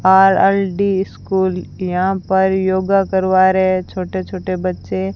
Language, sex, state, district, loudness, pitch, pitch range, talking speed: Hindi, female, Rajasthan, Bikaner, -16 LUFS, 190 Hz, 185-190 Hz, 130 wpm